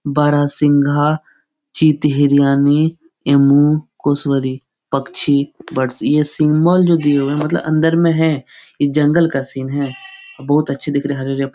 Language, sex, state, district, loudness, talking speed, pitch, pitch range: Hindi, male, Bihar, Jahanabad, -15 LUFS, 150 wpm, 145 Hz, 140-155 Hz